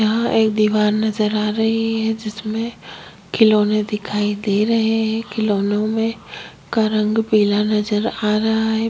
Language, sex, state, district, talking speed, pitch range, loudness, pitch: Hindi, female, Chhattisgarh, Kabirdham, 150 wpm, 210-220 Hz, -18 LUFS, 215 Hz